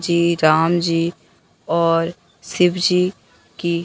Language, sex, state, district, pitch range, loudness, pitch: Hindi, male, Bihar, Katihar, 165-175 Hz, -18 LUFS, 170 Hz